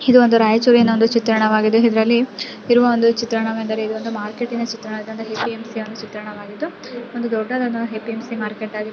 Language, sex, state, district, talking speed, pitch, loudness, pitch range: Kannada, female, Karnataka, Raichur, 180 wpm, 225 Hz, -18 LUFS, 220-235 Hz